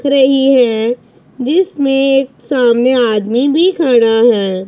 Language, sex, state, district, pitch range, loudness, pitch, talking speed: Hindi, female, Punjab, Pathankot, 235-275 Hz, -11 LUFS, 255 Hz, 130 wpm